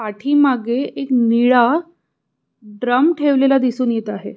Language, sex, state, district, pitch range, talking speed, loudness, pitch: Marathi, female, Maharashtra, Pune, 235-275 Hz, 110 wpm, -16 LUFS, 250 Hz